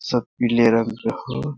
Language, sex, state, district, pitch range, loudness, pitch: Hindi, male, Jharkhand, Sahebganj, 115-125 Hz, -21 LUFS, 120 Hz